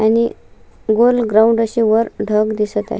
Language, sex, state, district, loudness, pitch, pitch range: Marathi, female, Maharashtra, Sindhudurg, -15 LUFS, 220 Hz, 215-230 Hz